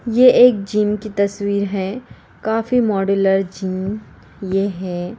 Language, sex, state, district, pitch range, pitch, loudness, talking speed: Hindi, female, Uttar Pradesh, Varanasi, 195-220 Hz, 200 Hz, -18 LUFS, 140 wpm